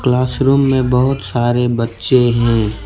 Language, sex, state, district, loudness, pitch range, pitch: Hindi, male, West Bengal, Alipurduar, -14 LUFS, 115-130 Hz, 125 Hz